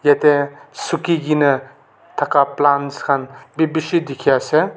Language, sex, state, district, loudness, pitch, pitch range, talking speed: Nagamese, male, Nagaland, Kohima, -18 LUFS, 145 Hz, 140-155 Hz, 115 wpm